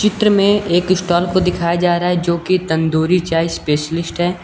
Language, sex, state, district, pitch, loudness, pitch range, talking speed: Hindi, male, Uttar Pradesh, Lucknow, 175 Hz, -16 LUFS, 170-185 Hz, 200 wpm